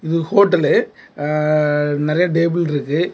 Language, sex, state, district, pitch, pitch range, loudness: Tamil, male, Tamil Nadu, Kanyakumari, 155 Hz, 150-170 Hz, -17 LUFS